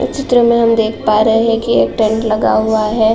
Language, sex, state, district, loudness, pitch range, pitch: Hindi, female, Uttar Pradesh, Jalaun, -13 LUFS, 220-230 Hz, 225 Hz